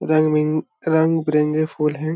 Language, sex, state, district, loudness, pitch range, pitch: Hindi, male, Jharkhand, Sahebganj, -19 LUFS, 150-160 Hz, 155 Hz